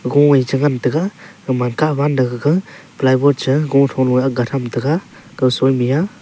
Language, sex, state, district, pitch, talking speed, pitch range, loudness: Wancho, male, Arunachal Pradesh, Longding, 135 Hz, 185 wpm, 130-155 Hz, -16 LUFS